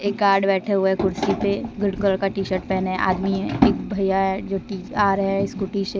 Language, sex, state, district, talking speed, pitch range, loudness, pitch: Hindi, female, Jharkhand, Deoghar, 220 wpm, 190-200 Hz, -22 LUFS, 195 Hz